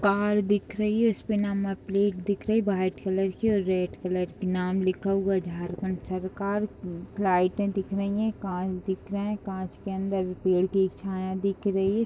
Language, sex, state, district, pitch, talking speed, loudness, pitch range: Hindi, female, Jharkhand, Jamtara, 195 Hz, 205 wpm, -28 LUFS, 185-200 Hz